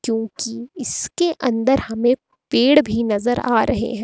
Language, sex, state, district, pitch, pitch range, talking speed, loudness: Hindi, female, Himachal Pradesh, Shimla, 240 Hz, 225-260 Hz, 150 wpm, -19 LUFS